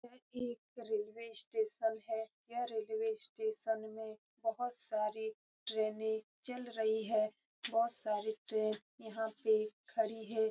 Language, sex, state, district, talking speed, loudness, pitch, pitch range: Hindi, female, Bihar, Lakhisarai, 125 wpm, -39 LUFS, 225 Hz, 220-250 Hz